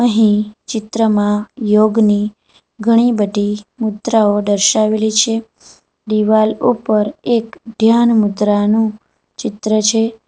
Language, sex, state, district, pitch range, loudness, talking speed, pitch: Gujarati, female, Gujarat, Valsad, 210-225 Hz, -15 LUFS, 90 wpm, 215 Hz